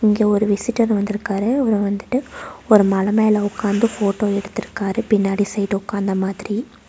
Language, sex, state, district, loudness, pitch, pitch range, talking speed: Tamil, female, Tamil Nadu, Nilgiris, -19 LUFS, 210 Hz, 200-220 Hz, 140 wpm